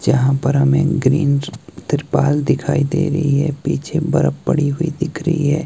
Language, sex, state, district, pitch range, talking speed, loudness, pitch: Hindi, male, Himachal Pradesh, Shimla, 140-160 Hz, 170 wpm, -17 LUFS, 150 Hz